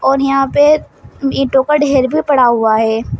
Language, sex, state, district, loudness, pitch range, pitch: Hindi, female, Uttar Pradesh, Shamli, -13 LUFS, 255-285 Hz, 270 Hz